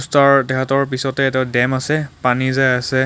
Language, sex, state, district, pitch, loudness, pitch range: Assamese, male, Assam, Kamrup Metropolitan, 130 Hz, -16 LUFS, 130-135 Hz